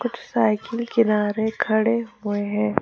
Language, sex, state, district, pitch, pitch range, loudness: Hindi, female, Jharkhand, Ranchi, 220 Hz, 210-235 Hz, -22 LUFS